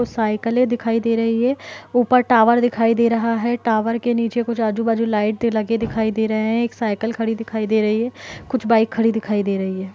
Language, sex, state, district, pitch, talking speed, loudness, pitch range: Hindi, female, Bihar, Kishanganj, 230 Hz, 225 wpm, -19 LUFS, 220-235 Hz